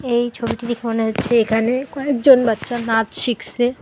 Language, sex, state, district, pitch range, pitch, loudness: Bengali, female, West Bengal, Alipurduar, 225-245 Hz, 240 Hz, -18 LUFS